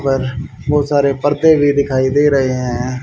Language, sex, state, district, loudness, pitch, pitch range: Hindi, male, Haryana, Jhajjar, -15 LUFS, 140 Hz, 130-145 Hz